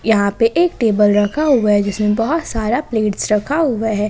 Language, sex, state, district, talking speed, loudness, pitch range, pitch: Hindi, female, Jharkhand, Ranchi, 205 wpm, -16 LUFS, 210-250 Hz, 220 Hz